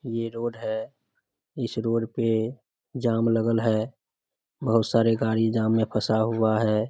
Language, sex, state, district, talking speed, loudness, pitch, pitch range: Hindi, male, Bihar, Samastipur, 155 wpm, -25 LUFS, 115 Hz, 110-115 Hz